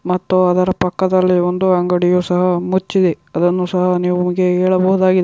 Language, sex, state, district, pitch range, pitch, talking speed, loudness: Kannada, female, Karnataka, Shimoga, 180-185 Hz, 180 Hz, 135 wpm, -15 LUFS